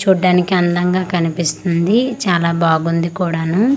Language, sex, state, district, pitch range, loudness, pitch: Telugu, female, Andhra Pradesh, Manyam, 170-185 Hz, -16 LUFS, 175 Hz